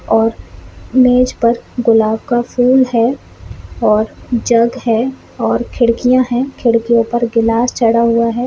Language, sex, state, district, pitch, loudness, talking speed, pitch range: Hindi, female, Chhattisgarh, Balrampur, 235 Hz, -14 LUFS, 125 wpm, 230-250 Hz